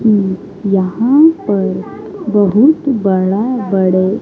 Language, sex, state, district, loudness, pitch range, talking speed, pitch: Hindi, male, Bihar, Kaimur, -13 LUFS, 190-240 Hz, 70 wpm, 200 Hz